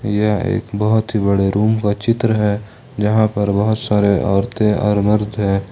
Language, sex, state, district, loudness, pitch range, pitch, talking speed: Hindi, male, Jharkhand, Ranchi, -17 LUFS, 100-110 Hz, 105 Hz, 180 wpm